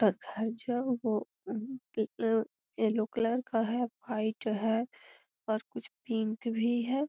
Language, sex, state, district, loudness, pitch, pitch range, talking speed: Magahi, female, Bihar, Gaya, -33 LUFS, 225 Hz, 220-245 Hz, 125 wpm